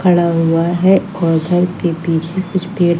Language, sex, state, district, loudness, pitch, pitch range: Hindi, female, Madhya Pradesh, Katni, -15 LUFS, 175 Hz, 165-185 Hz